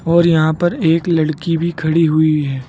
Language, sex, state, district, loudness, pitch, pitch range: Hindi, male, Uttar Pradesh, Saharanpur, -15 LUFS, 165 Hz, 155-170 Hz